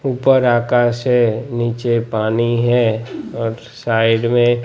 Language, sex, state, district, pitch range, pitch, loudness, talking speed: Hindi, male, Gujarat, Gandhinagar, 115-120 Hz, 120 Hz, -16 LUFS, 115 wpm